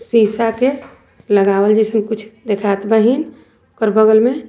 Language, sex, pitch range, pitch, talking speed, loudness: Sadri, female, 210-235 Hz, 220 Hz, 135 wpm, -15 LUFS